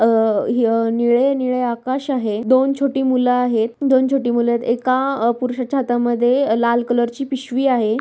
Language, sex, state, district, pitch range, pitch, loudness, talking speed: Marathi, female, Maharashtra, Aurangabad, 235-260 Hz, 245 Hz, -18 LUFS, 155 wpm